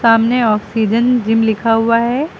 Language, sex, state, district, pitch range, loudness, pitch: Hindi, female, Uttar Pradesh, Lucknow, 225-240 Hz, -14 LUFS, 230 Hz